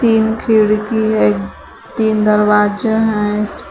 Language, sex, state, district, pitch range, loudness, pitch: Hindi, female, Uttar Pradesh, Shamli, 210-220 Hz, -14 LUFS, 215 Hz